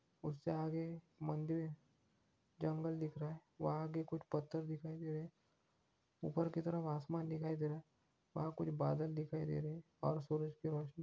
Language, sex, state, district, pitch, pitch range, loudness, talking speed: Hindi, male, Andhra Pradesh, Anantapur, 160 Hz, 155-165 Hz, -43 LUFS, 185 wpm